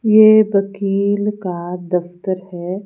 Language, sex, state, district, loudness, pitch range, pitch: Hindi, female, Himachal Pradesh, Shimla, -17 LUFS, 180-205 Hz, 195 Hz